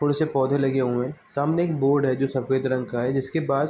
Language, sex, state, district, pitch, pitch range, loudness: Hindi, male, Bihar, East Champaran, 135 Hz, 130-145 Hz, -24 LUFS